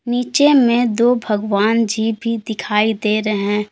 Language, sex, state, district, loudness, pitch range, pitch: Hindi, female, Uttar Pradesh, Lalitpur, -16 LUFS, 210-235 Hz, 220 Hz